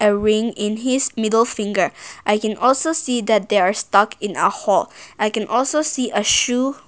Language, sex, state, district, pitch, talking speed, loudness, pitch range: English, female, Nagaland, Kohima, 220 Hz, 200 wpm, -19 LUFS, 210-255 Hz